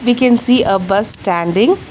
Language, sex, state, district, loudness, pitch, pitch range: English, female, Telangana, Hyderabad, -13 LUFS, 225 Hz, 195-245 Hz